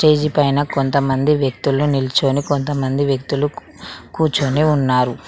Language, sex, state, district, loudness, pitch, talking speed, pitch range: Telugu, female, Telangana, Mahabubabad, -17 LUFS, 140 Hz, 100 wpm, 135-145 Hz